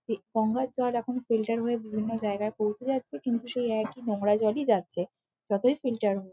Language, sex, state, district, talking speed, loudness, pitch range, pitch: Bengali, female, West Bengal, Malda, 180 wpm, -29 LUFS, 210-245 Hz, 225 Hz